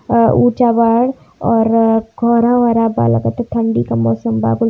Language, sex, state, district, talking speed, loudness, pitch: Hindi, female, Uttar Pradesh, Varanasi, 165 wpm, -14 LUFS, 225 Hz